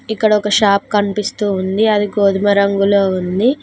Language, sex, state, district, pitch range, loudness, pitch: Telugu, female, Telangana, Mahabubabad, 200-210 Hz, -15 LUFS, 205 Hz